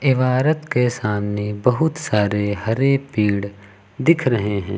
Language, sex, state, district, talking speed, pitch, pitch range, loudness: Hindi, male, Uttar Pradesh, Lucknow, 125 wpm, 115 Hz, 105-135 Hz, -19 LUFS